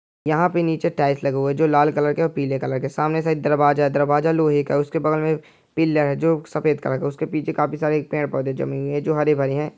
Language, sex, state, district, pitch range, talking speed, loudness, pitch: Angika, male, Bihar, Samastipur, 145-155 Hz, 250 wpm, -21 LUFS, 150 Hz